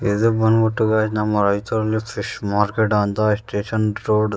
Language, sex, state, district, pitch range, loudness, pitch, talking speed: Kannada, male, Karnataka, Raichur, 105-110 Hz, -20 LUFS, 105 Hz, 150 wpm